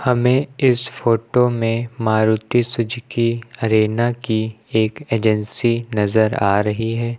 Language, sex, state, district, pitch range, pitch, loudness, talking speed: Hindi, male, Uttar Pradesh, Lucknow, 110-120 Hz, 115 Hz, -19 LUFS, 115 wpm